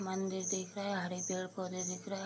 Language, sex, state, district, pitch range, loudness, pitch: Hindi, female, Bihar, Sitamarhi, 185-195 Hz, -38 LUFS, 190 Hz